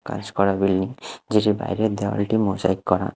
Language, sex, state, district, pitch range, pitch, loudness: Bengali, male, Odisha, Khordha, 100-110 Hz, 100 Hz, -22 LUFS